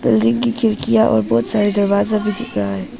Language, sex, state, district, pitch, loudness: Hindi, female, Arunachal Pradesh, Papum Pare, 200 Hz, -16 LUFS